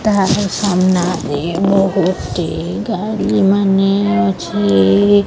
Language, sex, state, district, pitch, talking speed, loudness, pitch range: Odia, male, Odisha, Sambalpur, 195 Hz, 80 wpm, -15 LUFS, 180-205 Hz